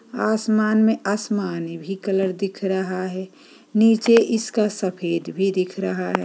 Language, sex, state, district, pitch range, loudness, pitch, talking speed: Hindi, female, Bihar, Saran, 185-215 Hz, -21 LUFS, 195 Hz, 135 wpm